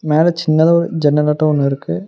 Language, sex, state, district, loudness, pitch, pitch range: Tamil, male, Tamil Nadu, Namakkal, -14 LUFS, 155 Hz, 145-165 Hz